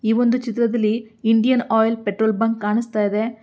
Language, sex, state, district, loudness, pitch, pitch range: Kannada, female, Karnataka, Belgaum, -19 LUFS, 225 Hz, 220-235 Hz